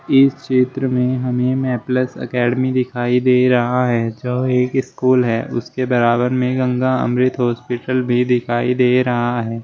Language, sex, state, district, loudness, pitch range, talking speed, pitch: Hindi, male, Uttar Pradesh, Shamli, -17 LUFS, 120-130 Hz, 155 wpm, 125 Hz